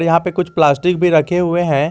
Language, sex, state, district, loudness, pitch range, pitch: Hindi, male, Jharkhand, Garhwa, -15 LUFS, 155-180 Hz, 170 Hz